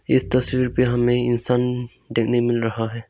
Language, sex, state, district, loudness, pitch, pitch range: Hindi, male, Arunachal Pradesh, Longding, -17 LUFS, 120 Hz, 115-125 Hz